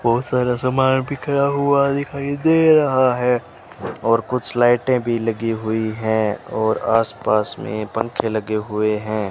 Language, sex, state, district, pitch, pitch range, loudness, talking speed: Hindi, male, Rajasthan, Bikaner, 120 Hz, 110-130 Hz, -19 LUFS, 155 wpm